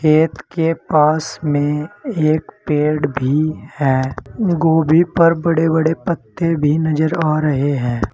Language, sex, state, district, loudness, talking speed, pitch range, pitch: Hindi, male, Uttar Pradesh, Saharanpur, -17 LUFS, 135 wpm, 145-165 Hz, 155 Hz